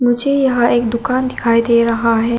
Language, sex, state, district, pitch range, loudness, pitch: Hindi, female, Arunachal Pradesh, Lower Dibang Valley, 230-255 Hz, -15 LUFS, 235 Hz